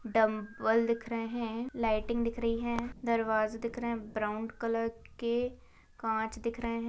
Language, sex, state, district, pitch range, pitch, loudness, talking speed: Hindi, female, Chhattisgarh, Balrampur, 225-235 Hz, 230 Hz, -33 LUFS, 175 wpm